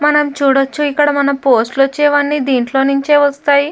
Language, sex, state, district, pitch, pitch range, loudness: Telugu, female, Andhra Pradesh, Chittoor, 280 Hz, 275-295 Hz, -13 LUFS